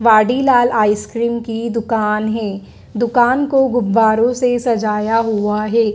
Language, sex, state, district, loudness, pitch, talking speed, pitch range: Hindi, female, Madhya Pradesh, Dhar, -16 LUFS, 230 Hz, 120 wpm, 215-240 Hz